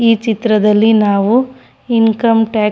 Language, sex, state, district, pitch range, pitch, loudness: Kannada, female, Karnataka, Shimoga, 215-230 Hz, 225 Hz, -12 LUFS